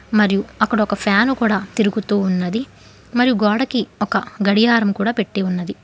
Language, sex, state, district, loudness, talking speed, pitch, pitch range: Telugu, female, Telangana, Hyderabad, -18 LUFS, 145 wpm, 210 Hz, 200-230 Hz